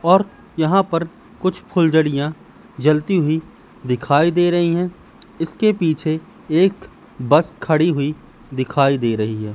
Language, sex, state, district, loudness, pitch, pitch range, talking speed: Hindi, male, Madhya Pradesh, Katni, -18 LUFS, 160 Hz, 140-175 Hz, 130 wpm